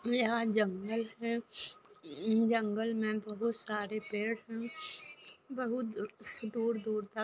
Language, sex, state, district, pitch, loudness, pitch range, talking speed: Hindi, female, Maharashtra, Dhule, 225 Hz, -36 LUFS, 215-235 Hz, 110 wpm